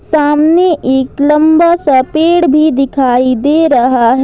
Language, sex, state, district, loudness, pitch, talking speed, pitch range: Hindi, female, Jharkhand, Ranchi, -10 LUFS, 295 Hz, 140 wpm, 260-315 Hz